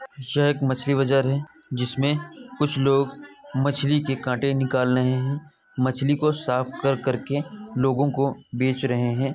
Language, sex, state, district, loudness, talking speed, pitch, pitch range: Hindi, male, Uttar Pradesh, Muzaffarnagar, -24 LUFS, 155 wpm, 135 Hz, 130-145 Hz